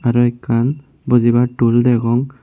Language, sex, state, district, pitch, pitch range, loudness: Chakma, male, Tripura, Unakoti, 120 Hz, 120-125 Hz, -15 LUFS